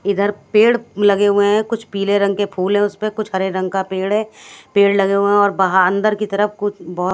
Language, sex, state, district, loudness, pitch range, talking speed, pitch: Hindi, female, Haryana, Charkhi Dadri, -17 LUFS, 195-210 Hz, 250 wpm, 200 Hz